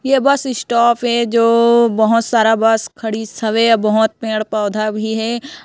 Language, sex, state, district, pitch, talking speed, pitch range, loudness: Hindi, female, Chhattisgarh, Korba, 230 Hz, 170 wpm, 220-235 Hz, -15 LUFS